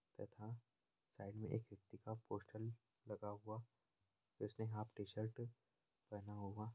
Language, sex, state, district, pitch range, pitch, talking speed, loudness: Hindi, male, Uttar Pradesh, Jalaun, 105-115 Hz, 110 Hz, 135 wpm, -52 LUFS